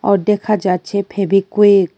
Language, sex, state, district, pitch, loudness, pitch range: Bengali, female, Tripura, West Tripura, 200 Hz, -15 LUFS, 195-205 Hz